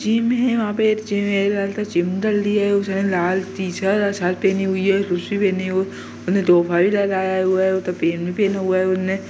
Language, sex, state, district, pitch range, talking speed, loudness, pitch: Hindi, male, Bihar, Vaishali, 185-205 Hz, 45 wpm, -19 LUFS, 195 Hz